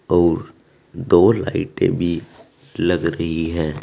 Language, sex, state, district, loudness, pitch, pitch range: Hindi, male, Uttar Pradesh, Saharanpur, -19 LUFS, 85 Hz, 80-85 Hz